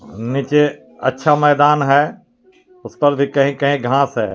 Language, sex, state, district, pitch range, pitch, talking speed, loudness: Hindi, male, Jharkhand, Palamu, 135-150 Hz, 140 Hz, 150 wpm, -16 LUFS